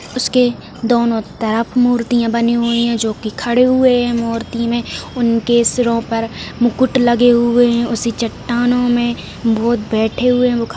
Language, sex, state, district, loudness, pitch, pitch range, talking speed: Hindi, female, Bihar, Purnia, -15 LUFS, 235 Hz, 230-245 Hz, 165 wpm